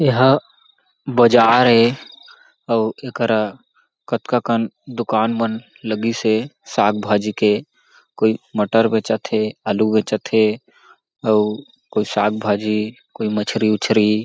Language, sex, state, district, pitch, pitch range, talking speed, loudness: Chhattisgarhi, male, Chhattisgarh, Jashpur, 110 Hz, 105-115 Hz, 120 wpm, -18 LUFS